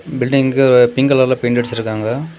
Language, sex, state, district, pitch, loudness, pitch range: Tamil, male, Tamil Nadu, Kanyakumari, 130 Hz, -14 LUFS, 120-135 Hz